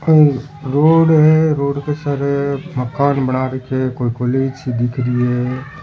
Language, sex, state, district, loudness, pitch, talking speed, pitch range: Rajasthani, male, Rajasthan, Churu, -16 LUFS, 140 Hz, 175 wpm, 130-145 Hz